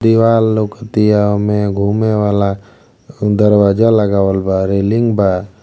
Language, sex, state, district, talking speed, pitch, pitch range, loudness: Bhojpuri, male, Uttar Pradesh, Ghazipur, 105 wpm, 105 Hz, 100-110 Hz, -13 LUFS